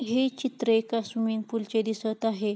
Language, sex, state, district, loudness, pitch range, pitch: Marathi, female, Maharashtra, Pune, -28 LUFS, 220-235 Hz, 225 Hz